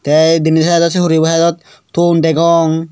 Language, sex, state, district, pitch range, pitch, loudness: Chakma, male, Tripura, Dhalai, 160-170 Hz, 165 Hz, -12 LUFS